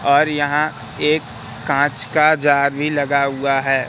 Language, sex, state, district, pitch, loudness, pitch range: Hindi, male, Madhya Pradesh, Katni, 140 Hz, -17 LUFS, 135-150 Hz